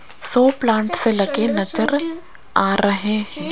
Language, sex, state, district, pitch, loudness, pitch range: Hindi, female, Rajasthan, Jaipur, 220 Hz, -19 LUFS, 200-270 Hz